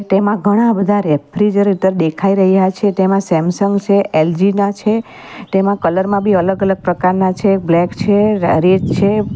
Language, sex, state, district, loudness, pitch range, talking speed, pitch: Gujarati, female, Gujarat, Valsad, -14 LUFS, 185-205 Hz, 155 wpm, 195 Hz